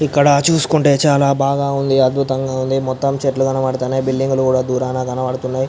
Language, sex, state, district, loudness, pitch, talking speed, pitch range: Telugu, male, Andhra Pradesh, Anantapur, -16 LUFS, 135 Hz, 150 wpm, 130-140 Hz